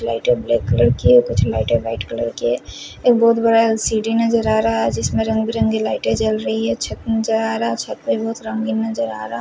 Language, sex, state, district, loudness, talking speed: Hindi, male, Punjab, Fazilka, -18 LUFS, 195 wpm